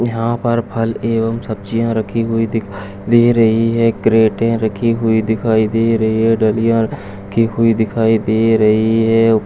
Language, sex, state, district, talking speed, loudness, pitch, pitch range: Kumaoni, male, Uttarakhand, Uttarkashi, 160 wpm, -15 LUFS, 115 Hz, 110-115 Hz